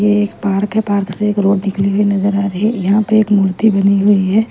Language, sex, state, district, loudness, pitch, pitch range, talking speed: Hindi, female, Punjab, Fazilka, -14 LUFS, 200 Hz, 195-210 Hz, 280 wpm